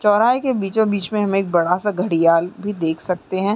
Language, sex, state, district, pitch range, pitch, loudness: Hindi, female, Chhattisgarh, Raigarh, 180-210 Hz, 195 Hz, -19 LUFS